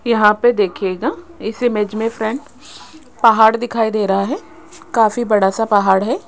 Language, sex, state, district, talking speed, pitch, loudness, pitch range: Hindi, female, Rajasthan, Jaipur, 160 wpm, 225 Hz, -16 LUFS, 210-265 Hz